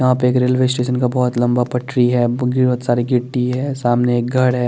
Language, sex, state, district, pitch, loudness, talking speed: Hindi, male, Chandigarh, Chandigarh, 125 Hz, -17 LUFS, 230 wpm